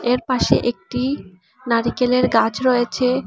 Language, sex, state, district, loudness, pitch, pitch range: Bengali, female, Assam, Hailakandi, -19 LUFS, 250 Hz, 230-255 Hz